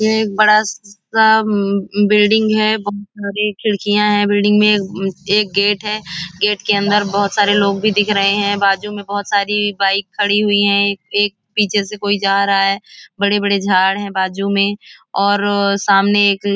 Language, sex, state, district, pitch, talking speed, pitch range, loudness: Hindi, female, Maharashtra, Nagpur, 205 Hz, 185 wpm, 200-210 Hz, -15 LUFS